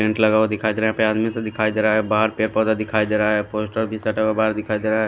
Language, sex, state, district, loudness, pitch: Hindi, male, Haryana, Charkhi Dadri, -20 LUFS, 110 Hz